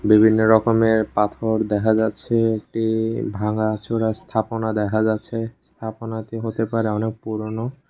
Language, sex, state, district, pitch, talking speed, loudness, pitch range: Bengali, male, Tripura, West Tripura, 110 Hz, 115 wpm, -21 LUFS, 110-115 Hz